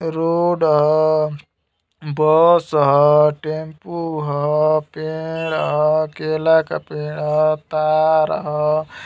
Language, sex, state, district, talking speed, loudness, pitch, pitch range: Bhojpuri, male, Uttar Pradesh, Gorakhpur, 95 wpm, -17 LUFS, 155 Hz, 150-160 Hz